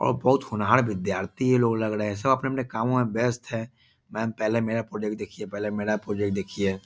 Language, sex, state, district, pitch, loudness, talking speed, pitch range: Hindi, male, Bihar, East Champaran, 110 Hz, -26 LUFS, 210 wpm, 105-125 Hz